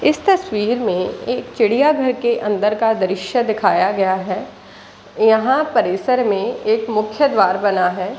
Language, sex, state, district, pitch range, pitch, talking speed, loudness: Hindi, female, Bihar, Jahanabad, 195-250 Hz, 220 Hz, 155 wpm, -17 LUFS